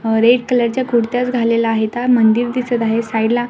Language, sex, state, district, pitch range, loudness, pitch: Marathi, female, Maharashtra, Washim, 225-245 Hz, -16 LUFS, 235 Hz